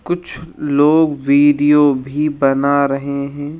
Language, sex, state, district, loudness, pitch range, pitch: Hindi, male, Rajasthan, Jaipur, -15 LUFS, 140-150 Hz, 145 Hz